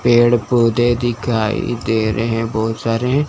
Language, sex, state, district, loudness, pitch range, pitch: Hindi, male, Chandigarh, Chandigarh, -17 LUFS, 115-120 Hz, 115 Hz